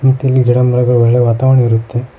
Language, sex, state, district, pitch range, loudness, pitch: Kannada, male, Karnataka, Koppal, 120-130 Hz, -11 LUFS, 125 Hz